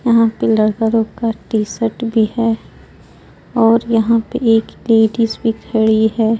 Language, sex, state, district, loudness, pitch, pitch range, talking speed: Hindi, female, Jharkhand, Ranchi, -15 LUFS, 225 Hz, 220-230 Hz, 150 wpm